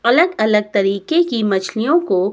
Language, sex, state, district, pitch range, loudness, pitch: Hindi, female, Himachal Pradesh, Shimla, 195-285 Hz, -16 LUFS, 215 Hz